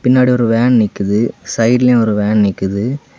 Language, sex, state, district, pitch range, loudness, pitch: Tamil, male, Tamil Nadu, Kanyakumari, 105-125 Hz, -14 LUFS, 115 Hz